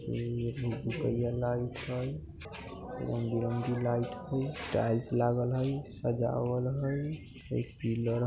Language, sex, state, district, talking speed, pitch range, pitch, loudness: Hindi, male, Bihar, Muzaffarpur, 80 wpm, 115-125 Hz, 120 Hz, -33 LUFS